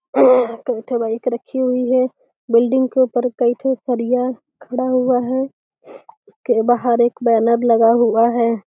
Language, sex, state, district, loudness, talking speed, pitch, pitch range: Hindi, female, Uttar Pradesh, Deoria, -17 LUFS, 150 wpm, 245 Hz, 235-255 Hz